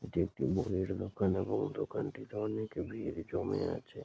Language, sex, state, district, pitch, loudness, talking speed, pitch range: Bengali, male, West Bengal, Malda, 100 Hz, -36 LUFS, 150 wpm, 95-110 Hz